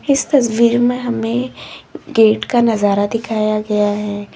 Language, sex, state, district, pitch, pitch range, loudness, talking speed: Hindi, female, Uttar Pradesh, Lalitpur, 230 Hz, 210-245 Hz, -15 LUFS, 135 wpm